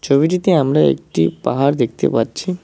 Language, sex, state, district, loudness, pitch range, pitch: Bengali, male, West Bengal, Cooch Behar, -16 LUFS, 120-180 Hz, 140 Hz